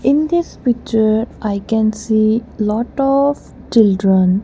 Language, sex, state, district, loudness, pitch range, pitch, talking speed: English, female, Punjab, Kapurthala, -16 LUFS, 215-255 Hz, 220 Hz, 120 wpm